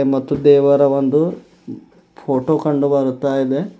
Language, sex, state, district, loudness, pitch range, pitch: Kannada, male, Karnataka, Bidar, -16 LUFS, 135-145 Hz, 140 Hz